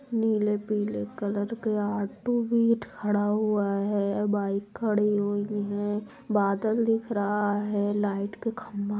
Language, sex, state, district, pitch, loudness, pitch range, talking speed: Angika, female, Bihar, Supaul, 210 Hz, -27 LUFS, 205-220 Hz, 140 wpm